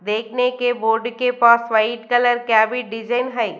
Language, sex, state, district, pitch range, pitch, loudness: Hindi, female, Bihar, Katihar, 225-245 Hz, 235 Hz, -18 LUFS